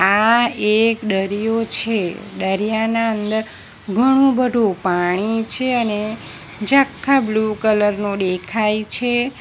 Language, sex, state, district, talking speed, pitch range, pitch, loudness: Gujarati, female, Gujarat, Valsad, 110 wpm, 205-230 Hz, 220 Hz, -18 LUFS